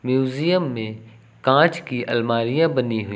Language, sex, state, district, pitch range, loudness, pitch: Hindi, male, Uttar Pradesh, Lucknow, 115-150 Hz, -20 LUFS, 125 Hz